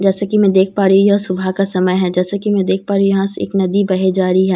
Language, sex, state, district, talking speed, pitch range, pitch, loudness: Hindi, female, Bihar, Katihar, 340 wpm, 185-200 Hz, 195 Hz, -14 LUFS